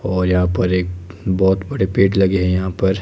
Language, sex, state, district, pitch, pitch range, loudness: Hindi, male, Himachal Pradesh, Shimla, 95 Hz, 90-95 Hz, -17 LUFS